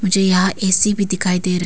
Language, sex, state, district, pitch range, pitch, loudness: Hindi, female, Arunachal Pradesh, Papum Pare, 180-195 Hz, 190 Hz, -16 LUFS